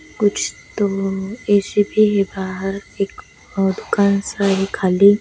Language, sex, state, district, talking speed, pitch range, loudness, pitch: Hindi, female, Bihar, West Champaran, 150 wpm, 195-205 Hz, -19 LUFS, 200 Hz